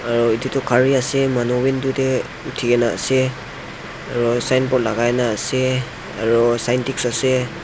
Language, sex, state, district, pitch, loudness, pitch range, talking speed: Nagamese, male, Nagaland, Dimapur, 125 Hz, -19 LUFS, 120-130 Hz, 140 wpm